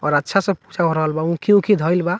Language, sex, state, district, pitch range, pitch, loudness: Bhojpuri, male, Bihar, Muzaffarpur, 155-195 Hz, 170 Hz, -18 LUFS